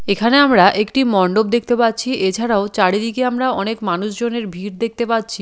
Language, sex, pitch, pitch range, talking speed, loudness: Bengali, female, 225 Hz, 200-235 Hz, 155 wpm, -16 LUFS